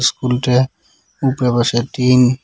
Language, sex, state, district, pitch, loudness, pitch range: Bengali, male, West Bengal, Cooch Behar, 125 Hz, -16 LUFS, 125-130 Hz